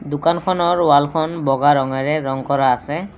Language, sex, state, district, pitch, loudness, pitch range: Assamese, male, Assam, Kamrup Metropolitan, 145 Hz, -17 LUFS, 135-165 Hz